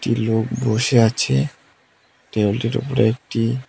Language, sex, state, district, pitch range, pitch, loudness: Bengali, male, West Bengal, Cooch Behar, 110-120 Hz, 115 Hz, -19 LUFS